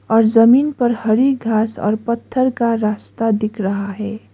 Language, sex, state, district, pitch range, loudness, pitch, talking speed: Hindi, female, Sikkim, Gangtok, 215-235 Hz, -17 LUFS, 225 Hz, 165 wpm